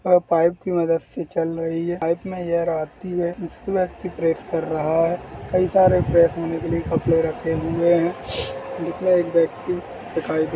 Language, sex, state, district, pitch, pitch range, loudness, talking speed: Hindi, male, Uttar Pradesh, Jalaun, 170 Hz, 165-180 Hz, -22 LUFS, 175 wpm